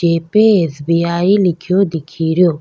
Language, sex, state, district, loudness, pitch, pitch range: Rajasthani, female, Rajasthan, Nagaur, -14 LUFS, 170 Hz, 165-185 Hz